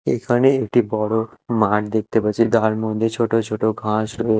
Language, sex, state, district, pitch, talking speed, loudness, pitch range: Bengali, male, Odisha, Malkangiri, 110 Hz, 165 wpm, -19 LUFS, 110-115 Hz